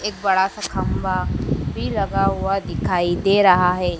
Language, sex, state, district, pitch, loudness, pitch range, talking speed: Hindi, female, Madhya Pradesh, Dhar, 190 Hz, -20 LUFS, 180-195 Hz, 165 wpm